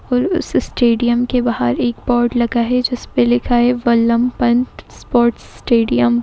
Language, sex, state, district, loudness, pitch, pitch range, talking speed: Hindi, female, Uttar Pradesh, Etah, -16 LUFS, 240 Hz, 235-245 Hz, 175 wpm